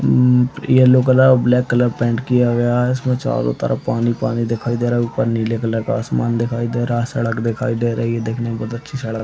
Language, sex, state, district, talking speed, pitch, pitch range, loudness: Hindi, male, Chhattisgarh, Raigarh, 240 wpm, 120 Hz, 115-125 Hz, -17 LUFS